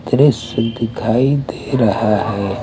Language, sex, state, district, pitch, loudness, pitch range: Hindi, male, Maharashtra, Mumbai Suburban, 115 Hz, -16 LUFS, 110-125 Hz